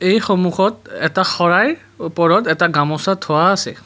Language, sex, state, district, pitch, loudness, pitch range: Assamese, male, Assam, Kamrup Metropolitan, 180 Hz, -16 LUFS, 165-195 Hz